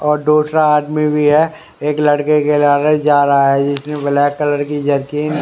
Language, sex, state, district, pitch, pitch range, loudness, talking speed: Hindi, male, Haryana, Rohtak, 150 Hz, 145-150 Hz, -14 LUFS, 175 wpm